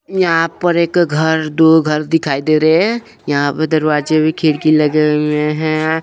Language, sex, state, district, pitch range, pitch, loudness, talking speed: Hindi, male, Chandigarh, Chandigarh, 150-165 Hz, 155 Hz, -14 LUFS, 180 wpm